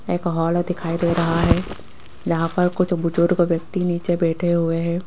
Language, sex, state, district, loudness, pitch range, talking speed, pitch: Hindi, female, Rajasthan, Jaipur, -20 LUFS, 170-175 Hz, 175 wpm, 170 Hz